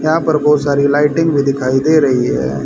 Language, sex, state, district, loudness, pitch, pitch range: Hindi, male, Haryana, Rohtak, -13 LUFS, 145 Hz, 130-155 Hz